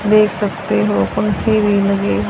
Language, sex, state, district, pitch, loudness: Hindi, female, Haryana, Jhajjar, 200 Hz, -16 LUFS